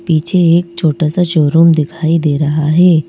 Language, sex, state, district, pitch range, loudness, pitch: Hindi, female, Madhya Pradesh, Bhopal, 155-170 Hz, -12 LUFS, 160 Hz